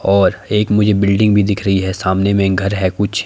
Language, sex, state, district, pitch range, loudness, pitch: Hindi, male, Himachal Pradesh, Shimla, 95-105 Hz, -15 LUFS, 100 Hz